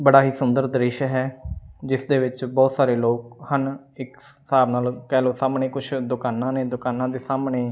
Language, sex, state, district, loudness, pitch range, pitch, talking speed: Punjabi, male, Punjab, Fazilka, -22 LUFS, 125-135 Hz, 130 Hz, 195 wpm